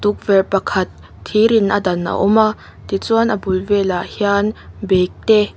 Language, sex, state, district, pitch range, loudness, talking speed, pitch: Mizo, female, Mizoram, Aizawl, 195-215 Hz, -16 LUFS, 170 wpm, 205 Hz